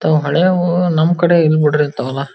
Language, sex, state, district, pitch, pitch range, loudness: Kannada, female, Karnataka, Belgaum, 155 Hz, 150-175 Hz, -14 LUFS